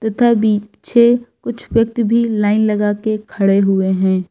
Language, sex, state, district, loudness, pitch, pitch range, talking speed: Hindi, female, Uttar Pradesh, Lucknow, -15 LUFS, 215 Hz, 205-235 Hz, 155 wpm